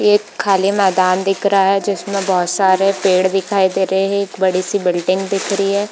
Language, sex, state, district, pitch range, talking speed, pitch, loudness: Hindi, female, Jharkhand, Sahebganj, 185-200 Hz, 215 wpm, 195 Hz, -16 LUFS